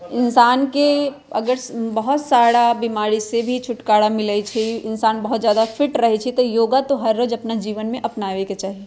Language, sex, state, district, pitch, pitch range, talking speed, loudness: Bajjika, female, Bihar, Vaishali, 230 Hz, 215-250 Hz, 190 wpm, -18 LUFS